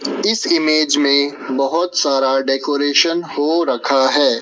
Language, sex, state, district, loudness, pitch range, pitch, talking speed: Hindi, male, Rajasthan, Jaipur, -16 LUFS, 135-165 Hz, 145 Hz, 120 wpm